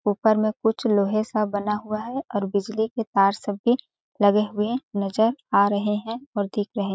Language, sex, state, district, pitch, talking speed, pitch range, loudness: Hindi, female, Chhattisgarh, Balrampur, 210 Hz, 205 wpm, 205-220 Hz, -23 LUFS